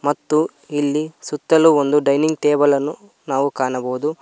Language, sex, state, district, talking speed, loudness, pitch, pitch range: Kannada, male, Karnataka, Koppal, 130 wpm, -18 LUFS, 145 Hz, 140-155 Hz